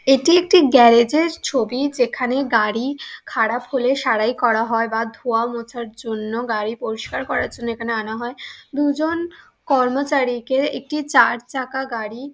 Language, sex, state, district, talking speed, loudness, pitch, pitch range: Bengali, female, West Bengal, Dakshin Dinajpur, 135 wpm, -19 LUFS, 245 Hz, 230-275 Hz